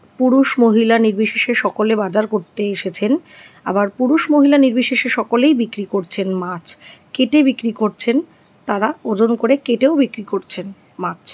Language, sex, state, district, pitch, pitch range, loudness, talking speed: Bengali, female, West Bengal, North 24 Parganas, 225 Hz, 205-255 Hz, -16 LUFS, 145 wpm